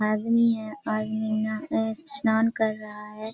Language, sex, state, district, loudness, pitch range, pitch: Hindi, female, Bihar, Kishanganj, -26 LUFS, 215-225 Hz, 220 Hz